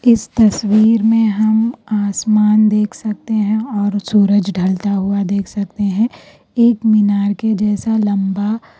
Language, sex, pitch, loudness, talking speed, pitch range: Urdu, female, 210 Hz, -15 LUFS, 145 wpm, 205-220 Hz